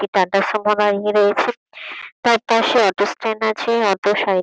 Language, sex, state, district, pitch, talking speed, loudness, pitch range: Bengali, female, West Bengal, Kolkata, 210 Hz, 160 wpm, -17 LUFS, 200-220 Hz